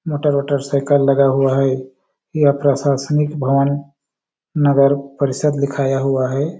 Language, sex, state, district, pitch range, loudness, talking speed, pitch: Hindi, male, Chhattisgarh, Balrampur, 135-145 Hz, -17 LUFS, 145 wpm, 140 Hz